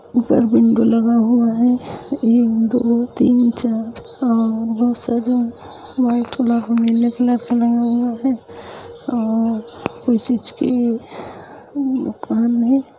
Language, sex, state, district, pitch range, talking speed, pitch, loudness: Hindi, female, Bihar, Gopalganj, 230-245 Hz, 95 wpm, 235 Hz, -17 LUFS